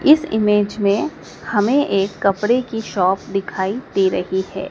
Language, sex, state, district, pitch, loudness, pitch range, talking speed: Hindi, female, Madhya Pradesh, Dhar, 200 Hz, -19 LUFS, 195-225 Hz, 155 wpm